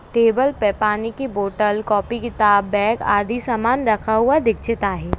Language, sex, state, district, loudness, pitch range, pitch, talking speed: Hindi, female, Maharashtra, Pune, -19 LUFS, 205-235 Hz, 220 Hz, 160 wpm